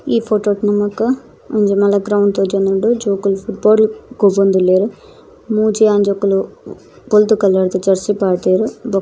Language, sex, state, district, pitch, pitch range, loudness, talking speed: Tulu, female, Karnataka, Dakshina Kannada, 205 Hz, 195-220 Hz, -15 LUFS, 125 wpm